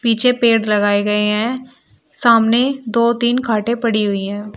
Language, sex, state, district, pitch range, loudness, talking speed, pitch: Hindi, female, Uttar Pradesh, Shamli, 210-240 Hz, -16 LUFS, 155 wpm, 230 Hz